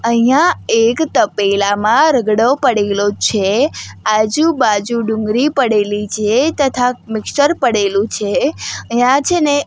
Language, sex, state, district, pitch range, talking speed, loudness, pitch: Gujarati, female, Gujarat, Gandhinagar, 210-275 Hz, 105 wpm, -14 LUFS, 230 Hz